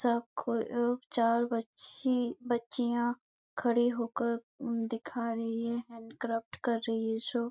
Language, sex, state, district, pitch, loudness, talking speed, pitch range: Hindi, female, Chhattisgarh, Bastar, 235 Hz, -33 LUFS, 145 wpm, 230-240 Hz